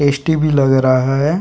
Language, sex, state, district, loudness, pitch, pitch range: Hindi, male, Chhattisgarh, Sukma, -14 LUFS, 140 Hz, 135-155 Hz